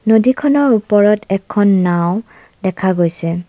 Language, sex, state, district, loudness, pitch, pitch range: Assamese, female, Assam, Kamrup Metropolitan, -14 LUFS, 205 Hz, 180-220 Hz